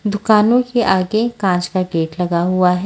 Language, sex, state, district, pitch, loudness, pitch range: Hindi, female, Punjab, Fazilka, 190 Hz, -16 LUFS, 180-215 Hz